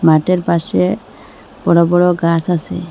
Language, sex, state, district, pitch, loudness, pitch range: Bengali, female, Assam, Hailakandi, 170 Hz, -14 LUFS, 165-175 Hz